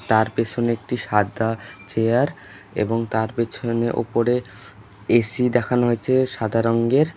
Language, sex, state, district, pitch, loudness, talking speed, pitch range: Bengali, male, West Bengal, Alipurduar, 115 Hz, -21 LUFS, 125 wpm, 110-120 Hz